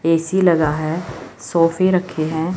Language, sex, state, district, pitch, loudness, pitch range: Hindi, female, Chandigarh, Chandigarh, 165 Hz, -18 LUFS, 160-180 Hz